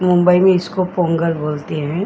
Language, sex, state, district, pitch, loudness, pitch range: Hindi, female, Uttar Pradesh, Etah, 175 Hz, -16 LUFS, 160-180 Hz